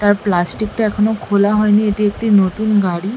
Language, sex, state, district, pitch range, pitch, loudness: Bengali, female, West Bengal, Malda, 200-215 Hz, 210 Hz, -15 LUFS